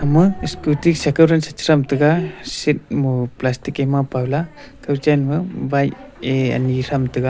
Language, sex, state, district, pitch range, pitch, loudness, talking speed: Wancho, male, Arunachal Pradesh, Longding, 130-155 Hz, 140 Hz, -18 LUFS, 165 wpm